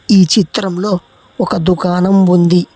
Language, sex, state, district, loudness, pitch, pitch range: Telugu, male, Telangana, Hyderabad, -12 LUFS, 185 Hz, 180-200 Hz